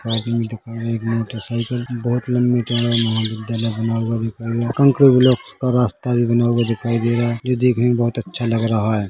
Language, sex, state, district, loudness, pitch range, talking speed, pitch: Hindi, male, Chhattisgarh, Rajnandgaon, -19 LUFS, 115-120 Hz, 250 wpm, 115 Hz